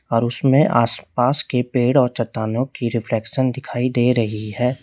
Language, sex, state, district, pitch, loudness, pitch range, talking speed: Hindi, male, Uttar Pradesh, Lalitpur, 125 Hz, -19 LUFS, 115-130 Hz, 160 wpm